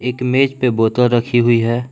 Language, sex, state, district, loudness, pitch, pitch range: Hindi, male, Jharkhand, Palamu, -15 LUFS, 120 Hz, 120-125 Hz